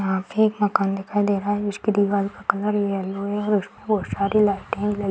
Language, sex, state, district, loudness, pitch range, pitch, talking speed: Hindi, female, Bihar, Madhepura, -23 LUFS, 195-210 Hz, 205 Hz, 245 wpm